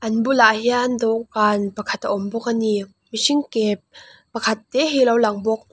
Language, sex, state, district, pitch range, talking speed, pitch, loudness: Mizo, female, Mizoram, Aizawl, 210-235 Hz, 190 wpm, 225 Hz, -20 LUFS